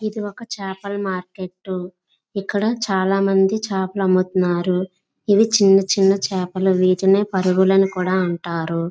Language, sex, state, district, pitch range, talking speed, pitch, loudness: Telugu, female, Andhra Pradesh, Visakhapatnam, 185-200 Hz, 130 wpm, 190 Hz, -19 LUFS